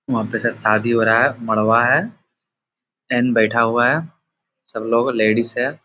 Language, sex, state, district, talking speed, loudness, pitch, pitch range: Hindi, male, Bihar, Jamui, 165 wpm, -17 LUFS, 115 Hz, 110-120 Hz